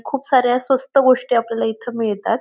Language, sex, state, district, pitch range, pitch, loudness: Marathi, female, Maharashtra, Pune, 230-260 Hz, 245 Hz, -18 LUFS